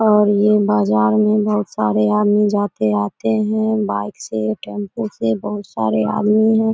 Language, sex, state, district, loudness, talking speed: Hindi, female, Bihar, Samastipur, -17 LUFS, 160 wpm